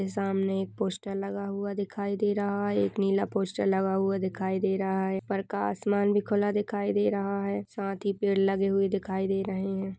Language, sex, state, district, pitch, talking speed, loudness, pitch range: Hindi, female, Uttar Pradesh, Budaun, 195 Hz, 210 wpm, -29 LUFS, 195-200 Hz